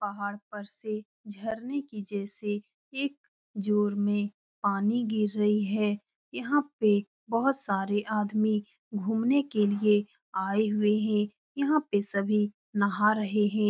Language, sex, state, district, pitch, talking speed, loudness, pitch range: Hindi, female, Bihar, Saran, 210 Hz, 130 wpm, -29 LUFS, 205-220 Hz